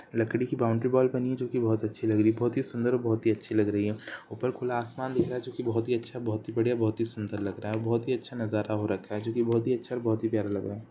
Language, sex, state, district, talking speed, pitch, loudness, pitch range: Hindi, male, Chhattisgarh, Bastar, 340 wpm, 115 Hz, -29 LUFS, 110-125 Hz